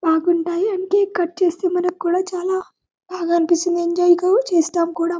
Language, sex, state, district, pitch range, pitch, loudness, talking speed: Telugu, female, Telangana, Karimnagar, 340-370 Hz, 350 Hz, -19 LUFS, 150 wpm